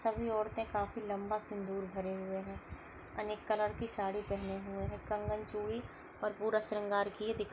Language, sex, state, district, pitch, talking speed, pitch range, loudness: Hindi, female, Maharashtra, Chandrapur, 210 Hz, 185 wpm, 195-215 Hz, -39 LUFS